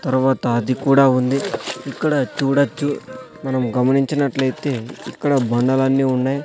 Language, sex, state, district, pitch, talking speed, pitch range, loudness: Telugu, male, Andhra Pradesh, Sri Satya Sai, 135 Hz, 100 wpm, 130-140 Hz, -19 LUFS